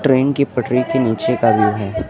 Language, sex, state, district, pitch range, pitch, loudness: Hindi, male, Uttar Pradesh, Lucknow, 110-130 Hz, 125 Hz, -17 LUFS